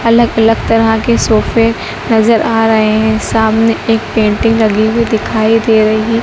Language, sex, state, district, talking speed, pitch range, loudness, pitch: Hindi, female, Madhya Pradesh, Dhar, 185 wpm, 220-225 Hz, -11 LUFS, 225 Hz